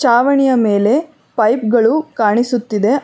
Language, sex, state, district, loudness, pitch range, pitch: Kannada, female, Karnataka, Bangalore, -14 LUFS, 215-270 Hz, 240 Hz